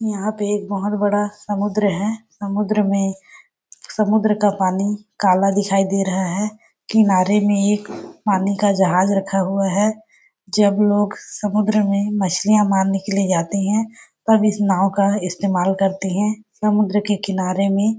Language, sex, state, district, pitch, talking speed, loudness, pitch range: Hindi, female, Chhattisgarh, Balrampur, 205 Hz, 155 wpm, -19 LUFS, 195-210 Hz